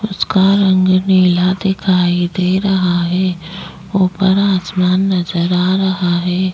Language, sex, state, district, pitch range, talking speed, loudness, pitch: Hindi, female, Chhattisgarh, Jashpur, 180-190 Hz, 120 wpm, -14 LUFS, 185 Hz